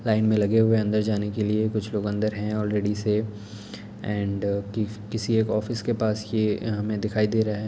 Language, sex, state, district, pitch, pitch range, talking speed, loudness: Hindi, male, Uttar Pradesh, Etah, 105 Hz, 105-110 Hz, 195 wpm, -25 LUFS